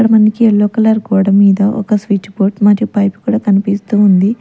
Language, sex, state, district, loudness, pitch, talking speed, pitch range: Telugu, female, Andhra Pradesh, Manyam, -12 LUFS, 205 Hz, 190 wpm, 200-220 Hz